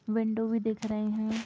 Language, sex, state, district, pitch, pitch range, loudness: Hindi, female, Uttar Pradesh, Jalaun, 220 Hz, 215-225 Hz, -31 LUFS